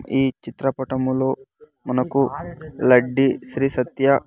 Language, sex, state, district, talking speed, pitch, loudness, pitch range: Telugu, male, Andhra Pradesh, Sri Satya Sai, 85 wpm, 135 Hz, -21 LUFS, 130-140 Hz